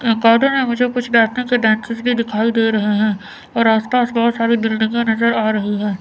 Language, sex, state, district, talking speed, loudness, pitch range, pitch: Hindi, female, Chandigarh, Chandigarh, 220 wpm, -16 LUFS, 220-235 Hz, 230 Hz